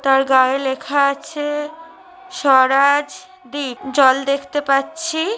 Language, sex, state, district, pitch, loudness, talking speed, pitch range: Bengali, female, West Bengal, North 24 Parganas, 280 Hz, -17 LUFS, 100 wpm, 270-320 Hz